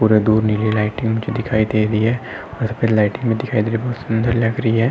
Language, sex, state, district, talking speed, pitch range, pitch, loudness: Hindi, male, Uttar Pradesh, Etah, 255 wpm, 110-115 Hz, 110 Hz, -18 LUFS